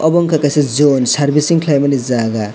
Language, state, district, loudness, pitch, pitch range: Kokborok, Tripura, West Tripura, -13 LUFS, 145 Hz, 130-155 Hz